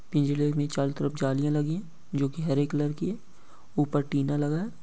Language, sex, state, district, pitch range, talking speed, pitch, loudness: Hindi, male, Bihar, Bhagalpur, 140-150 Hz, 210 wpm, 145 Hz, -28 LUFS